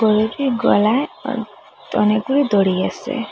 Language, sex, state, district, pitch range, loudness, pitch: Bengali, female, Assam, Hailakandi, 210-265 Hz, -18 LUFS, 220 Hz